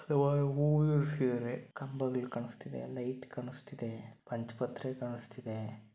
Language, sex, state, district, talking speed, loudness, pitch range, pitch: Kannada, male, Karnataka, Dharwad, 100 wpm, -36 LUFS, 115-140 Hz, 125 Hz